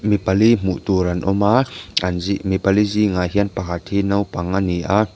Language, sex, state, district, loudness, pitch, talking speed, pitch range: Mizo, male, Mizoram, Aizawl, -19 LUFS, 95 Hz, 220 wpm, 90-105 Hz